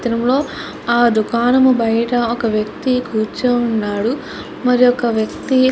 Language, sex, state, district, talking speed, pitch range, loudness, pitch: Telugu, female, Andhra Pradesh, Chittoor, 115 wpm, 225-250 Hz, -16 LUFS, 240 Hz